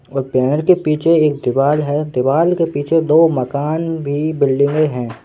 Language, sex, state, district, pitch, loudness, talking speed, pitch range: Hindi, male, Madhya Pradesh, Bhopal, 150 Hz, -15 LUFS, 170 wpm, 135-160 Hz